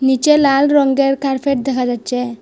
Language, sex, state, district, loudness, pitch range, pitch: Bengali, female, Assam, Hailakandi, -15 LUFS, 250-275 Hz, 270 Hz